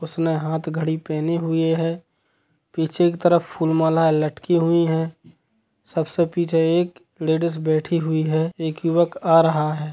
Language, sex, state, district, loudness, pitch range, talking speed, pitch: Hindi, male, Chhattisgarh, Sukma, -21 LUFS, 160-170 Hz, 150 wpm, 160 Hz